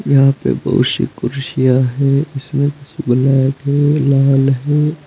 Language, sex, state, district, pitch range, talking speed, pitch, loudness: Hindi, male, Uttar Pradesh, Saharanpur, 135-145 Hz, 140 wpm, 140 Hz, -15 LUFS